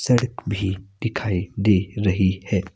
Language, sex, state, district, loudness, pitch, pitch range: Hindi, male, Himachal Pradesh, Shimla, -23 LUFS, 100 Hz, 95-110 Hz